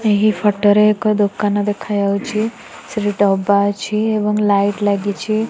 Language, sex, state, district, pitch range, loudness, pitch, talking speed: Odia, female, Odisha, Nuapada, 200-215 Hz, -17 LUFS, 205 Hz, 130 wpm